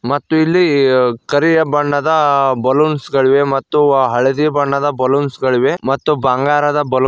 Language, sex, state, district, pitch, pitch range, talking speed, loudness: Kannada, male, Karnataka, Koppal, 140 Hz, 130-150 Hz, 125 wpm, -14 LUFS